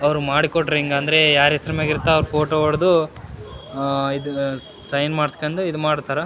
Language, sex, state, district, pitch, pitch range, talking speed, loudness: Kannada, male, Karnataka, Raichur, 150 Hz, 140-155 Hz, 125 wpm, -19 LUFS